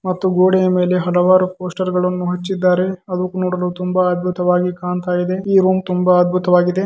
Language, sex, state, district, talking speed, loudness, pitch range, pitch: Kannada, male, Karnataka, Dharwad, 150 wpm, -16 LUFS, 180-185 Hz, 180 Hz